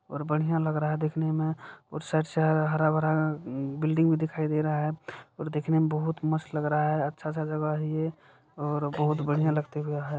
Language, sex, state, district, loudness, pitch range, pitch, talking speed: Maithili, male, Bihar, Supaul, -28 LUFS, 150-155 Hz, 155 Hz, 210 wpm